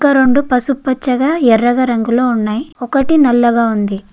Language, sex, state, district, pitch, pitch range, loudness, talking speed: Telugu, female, Andhra Pradesh, Guntur, 250 Hz, 235-275 Hz, -13 LUFS, 145 wpm